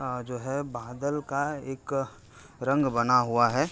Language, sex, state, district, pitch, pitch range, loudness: Hindi, male, Uttar Pradesh, Hamirpur, 130 Hz, 125-140 Hz, -28 LUFS